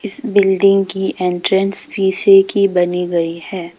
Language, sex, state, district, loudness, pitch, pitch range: Hindi, female, Arunachal Pradesh, Papum Pare, -15 LUFS, 190 Hz, 180-195 Hz